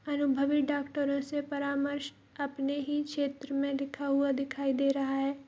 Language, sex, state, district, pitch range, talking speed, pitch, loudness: Hindi, female, Bihar, Saharsa, 275-285 Hz, 155 wpm, 280 Hz, -32 LUFS